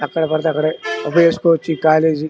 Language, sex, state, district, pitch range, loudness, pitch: Telugu, male, Andhra Pradesh, Krishna, 155-165 Hz, -16 LUFS, 160 Hz